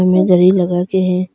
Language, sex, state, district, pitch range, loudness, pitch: Hindi, female, Arunachal Pradesh, Longding, 180-185 Hz, -13 LUFS, 185 Hz